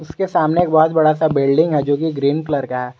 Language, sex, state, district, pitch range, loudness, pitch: Hindi, male, Jharkhand, Garhwa, 140-160 Hz, -16 LUFS, 155 Hz